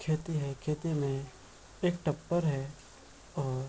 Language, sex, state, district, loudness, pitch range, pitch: Hindi, male, Bihar, Bhagalpur, -34 LUFS, 135-160 Hz, 145 Hz